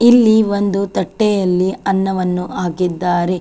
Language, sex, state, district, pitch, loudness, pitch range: Kannada, female, Karnataka, Chamarajanagar, 190 Hz, -16 LUFS, 180-200 Hz